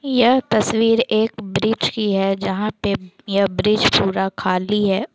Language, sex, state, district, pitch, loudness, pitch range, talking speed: Hindi, female, Chhattisgarh, Sukma, 210 Hz, -18 LUFS, 195-220 Hz, 150 wpm